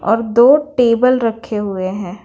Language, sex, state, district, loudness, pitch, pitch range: Hindi, female, Bihar, Patna, -14 LUFS, 230 Hz, 205-250 Hz